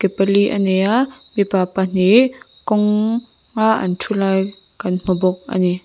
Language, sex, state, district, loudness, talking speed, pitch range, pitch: Mizo, female, Mizoram, Aizawl, -17 LUFS, 175 wpm, 190-220 Hz, 195 Hz